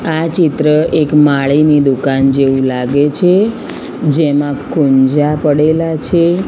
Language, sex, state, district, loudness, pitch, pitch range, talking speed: Gujarati, female, Gujarat, Gandhinagar, -12 LUFS, 150 Hz, 140-165 Hz, 110 wpm